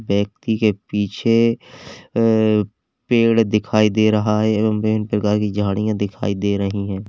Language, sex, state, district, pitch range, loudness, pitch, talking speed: Hindi, male, Uttar Pradesh, Lalitpur, 105-110 Hz, -18 LUFS, 105 Hz, 150 wpm